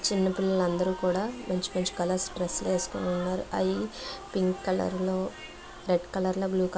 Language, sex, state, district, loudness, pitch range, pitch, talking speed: Telugu, female, Andhra Pradesh, Visakhapatnam, -29 LUFS, 180-190 Hz, 185 Hz, 170 wpm